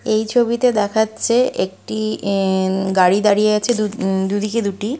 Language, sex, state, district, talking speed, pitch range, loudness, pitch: Bengali, female, West Bengal, Malda, 120 wpm, 195-220 Hz, -17 LUFS, 210 Hz